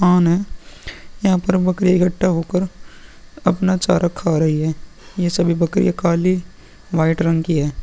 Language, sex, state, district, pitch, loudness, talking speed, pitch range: Hindi, male, Uttar Pradesh, Muzaffarnagar, 175 Hz, -18 LUFS, 155 wpm, 165-185 Hz